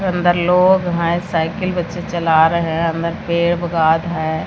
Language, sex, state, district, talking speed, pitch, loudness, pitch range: Hindi, female, Bihar, Katihar, 150 wpm, 170 Hz, -17 LUFS, 165-175 Hz